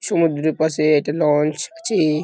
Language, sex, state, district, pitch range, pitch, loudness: Bengali, male, West Bengal, Kolkata, 150-160 Hz, 155 Hz, -19 LUFS